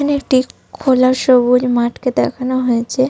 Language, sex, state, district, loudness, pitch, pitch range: Bengali, female, Jharkhand, Sahebganj, -15 LUFS, 255 Hz, 250-260 Hz